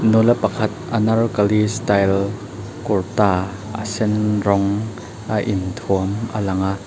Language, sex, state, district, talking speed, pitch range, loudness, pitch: Mizo, male, Mizoram, Aizawl, 115 wpm, 100-110 Hz, -19 LUFS, 105 Hz